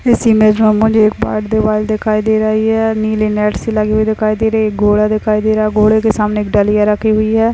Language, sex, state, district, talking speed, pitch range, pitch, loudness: Hindi, female, Maharashtra, Chandrapur, 255 wpm, 215-220 Hz, 215 Hz, -13 LUFS